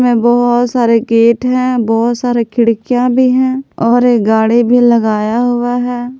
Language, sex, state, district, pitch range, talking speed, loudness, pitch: Hindi, female, Jharkhand, Palamu, 230-245 Hz, 155 wpm, -12 LUFS, 240 Hz